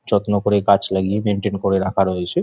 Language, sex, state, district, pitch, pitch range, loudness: Bengali, male, West Bengal, Jhargram, 100 Hz, 95-100 Hz, -19 LUFS